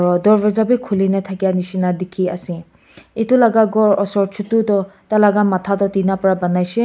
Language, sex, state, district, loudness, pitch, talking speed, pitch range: Nagamese, male, Nagaland, Kohima, -16 LUFS, 195 Hz, 185 wpm, 185-215 Hz